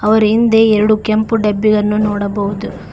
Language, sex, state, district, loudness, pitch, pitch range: Kannada, female, Karnataka, Koppal, -13 LUFS, 215 Hz, 210-220 Hz